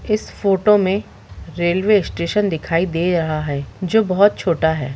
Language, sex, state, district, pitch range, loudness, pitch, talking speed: Hindi, male, Jharkhand, Jamtara, 160-200 Hz, -18 LUFS, 175 Hz, 155 wpm